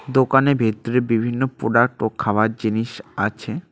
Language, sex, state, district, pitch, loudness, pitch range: Bengali, male, West Bengal, Cooch Behar, 115 Hz, -20 LUFS, 110-130 Hz